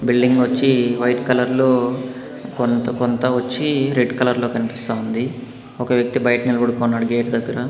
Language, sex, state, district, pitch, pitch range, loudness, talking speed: Telugu, male, Andhra Pradesh, Annamaya, 125 Hz, 120-125 Hz, -19 LUFS, 140 wpm